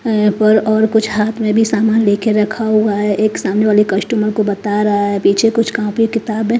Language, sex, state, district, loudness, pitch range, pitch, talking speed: Hindi, female, Punjab, Kapurthala, -14 LUFS, 210-220 Hz, 215 Hz, 225 wpm